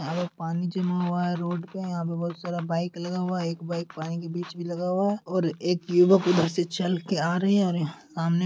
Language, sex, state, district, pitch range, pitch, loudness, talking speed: Hindi, male, Uttar Pradesh, Deoria, 170-180 Hz, 175 Hz, -27 LUFS, 275 wpm